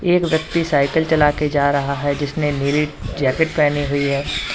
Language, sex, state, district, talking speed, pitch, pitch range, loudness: Hindi, male, Uttar Pradesh, Lalitpur, 185 wpm, 145 Hz, 140-160 Hz, -18 LUFS